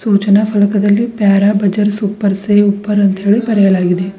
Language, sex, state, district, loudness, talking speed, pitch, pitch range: Kannada, female, Karnataka, Bidar, -12 LUFS, 130 wpm, 205 Hz, 200-210 Hz